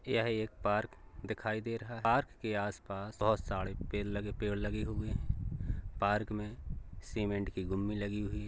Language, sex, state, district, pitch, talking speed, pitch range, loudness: Hindi, male, Uttar Pradesh, Jalaun, 105 Hz, 200 wpm, 100-110 Hz, -36 LUFS